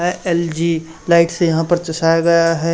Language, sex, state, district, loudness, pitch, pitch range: Hindi, male, Haryana, Charkhi Dadri, -16 LUFS, 170 Hz, 165-170 Hz